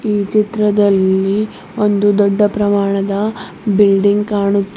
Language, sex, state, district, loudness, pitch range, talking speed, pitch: Kannada, female, Karnataka, Bidar, -14 LUFS, 200-210 Hz, 90 wpm, 205 Hz